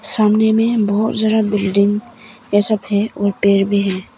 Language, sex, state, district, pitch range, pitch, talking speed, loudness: Hindi, female, Arunachal Pradesh, Papum Pare, 200-220 Hz, 210 Hz, 170 wpm, -15 LUFS